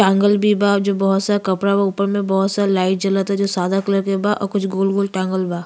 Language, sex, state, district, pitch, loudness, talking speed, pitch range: Bhojpuri, female, Uttar Pradesh, Ghazipur, 195 Hz, -18 LUFS, 265 wpm, 195-200 Hz